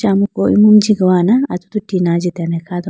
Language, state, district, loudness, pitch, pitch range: Idu Mishmi, Arunachal Pradesh, Lower Dibang Valley, -14 LUFS, 185 Hz, 175-210 Hz